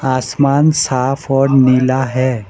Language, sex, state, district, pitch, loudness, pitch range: Hindi, male, Arunachal Pradesh, Lower Dibang Valley, 130 Hz, -13 LUFS, 130-135 Hz